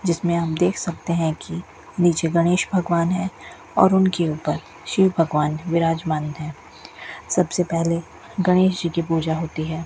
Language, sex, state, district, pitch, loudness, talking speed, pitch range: Hindi, female, Rajasthan, Bikaner, 170 Hz, -21 LUFS, 150 wpm, 160-180 Hz